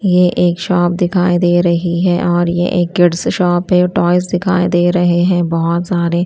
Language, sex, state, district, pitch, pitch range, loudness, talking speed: Hindi, female, Punjab, Kapurthala, 175 Hz, 175-180 Hz, -13 LUFS, 190 wpm